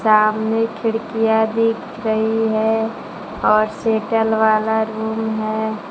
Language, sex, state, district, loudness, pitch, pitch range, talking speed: Hindi, female, Jharkhand, Palamu, -18 LUFS, 220 Hz, 220-225 Hz, 100 wpm